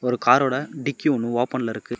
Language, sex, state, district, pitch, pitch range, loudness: Tamil, male, Tamil Nadu, Namakkal, 120 Hz, 120-125 Hz, -22 LUFS